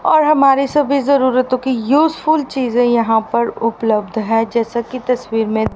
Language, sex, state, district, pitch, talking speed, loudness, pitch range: Hindi, female, Haryana, Rohtak, 250 Hz, 155 wpm, -15 LUFS, 225-275 Hz